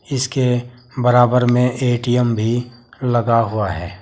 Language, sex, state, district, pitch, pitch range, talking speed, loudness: Hindi, male, Uttar Pradesh, Saharanpur, 120 Hz, 115-125 Hz, 120 wpm, -17 LUFS